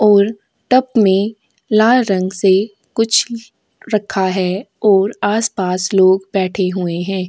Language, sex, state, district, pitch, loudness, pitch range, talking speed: Hindi, female, Uttar Pradesh, Etah, 200 Hz, -15 LUFS, 190-220 Hz, 130 wpm